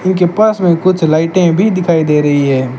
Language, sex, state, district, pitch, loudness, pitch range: Hindi, male, Rajasthan, Bikaner, 170 Hz, -11 LUFS, 150-185 Hz